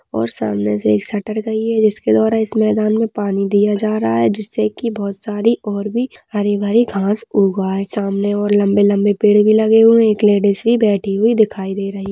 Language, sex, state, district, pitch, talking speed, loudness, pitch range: Hindi, female, Maharashtra, Sindhudurg, 205 Hz, 235 wpm, -16 LUFS, 200-220 Hz